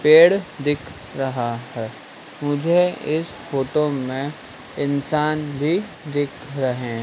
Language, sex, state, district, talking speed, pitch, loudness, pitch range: Hindi, male, Madhya Pradesh, Dhar, 100 wpm, 145 Hz, -22 LUFS, 135-155 Hz